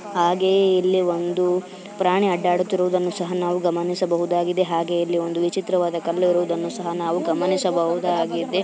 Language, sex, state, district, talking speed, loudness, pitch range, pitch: Kannada, female, Karnataka, Belgaum, 120 wpm, -21 LUFS, 170-185 Hz, 180 Hz